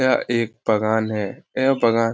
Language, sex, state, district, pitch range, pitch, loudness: Hindi, male, Bihar, Lakhisarai, 110-120 Hz, 115 Hz, -21 LUFS